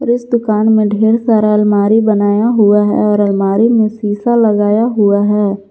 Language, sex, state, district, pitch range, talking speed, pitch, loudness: Hindi, female, Jharkhand, Garhwa, 205-225 Hz, 170 wpm, 210 Hz, -12 LUFS